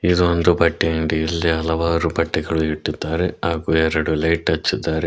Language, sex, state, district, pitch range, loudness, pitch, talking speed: Kannada, male, Karnataka, Koppal, 80-85 Hz, -19 LUFS, 80 Hz, 140 wpm